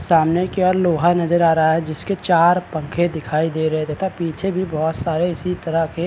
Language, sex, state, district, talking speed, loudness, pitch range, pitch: Hindi, male, Bihar, Vaishali, 235 wpm, -19 LUFS, 160-180 Hz, 170 Hz